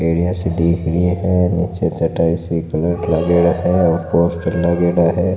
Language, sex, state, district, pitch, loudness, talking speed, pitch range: Marwari, male, Rajasthan, Nagaur, 85 Hz, -17 LUFS, 155 wpm, 85-90 Hz